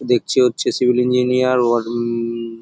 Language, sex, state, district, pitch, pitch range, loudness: Bengali, male, West Bengal, North 24 Parganas, 120 Hz, 115-125 Hz, -17 LUFS